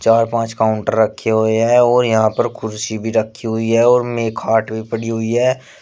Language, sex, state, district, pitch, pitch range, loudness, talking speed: Hindi, male, Uttar Pradesh, Shamli, 115 Hz, 110-115 Hz, -16 LUFS, 215 wpm